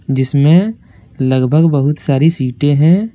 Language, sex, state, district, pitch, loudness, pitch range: Hindi, male, Jharkhand, Deoghar, 145 Hz, -13 LUFS, 130-160 Hz